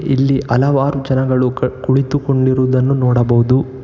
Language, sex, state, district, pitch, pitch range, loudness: Kannada, male, Karnataka, Bangalore, 130 Hz, 130-135 Hz, -15 LUFS